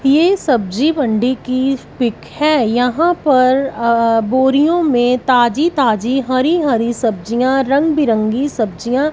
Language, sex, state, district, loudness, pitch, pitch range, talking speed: Hindi, female, Punjab, Fazilka, -15 LUFS, 255 Hz, 235-285 Hz, 125 wpm